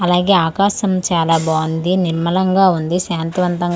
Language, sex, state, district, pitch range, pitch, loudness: Telugu, female, Andhra Pradesh, Manyam, 165-185 Hz, 175 Hz, -16 LUFS